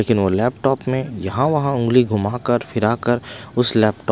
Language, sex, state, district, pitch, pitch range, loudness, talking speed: Hindi, male, Punjab, Pathankot, 120 Hz, 110-125 Hz, -19 LUFS, 175 wpm